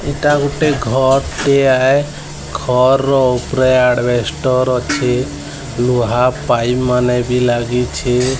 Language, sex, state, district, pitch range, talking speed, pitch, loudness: Odia, male, Odisha, Sambalpur, 125-135 Hz, 105 wpm, 125 Hz, -14 LUFS